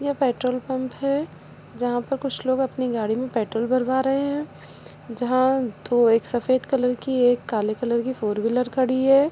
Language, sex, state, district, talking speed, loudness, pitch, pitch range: Hindi, female, Chhattisgarh, Kabirdham, 180 wpm, -23 LUFS, 255 Hz, 240-265 Hz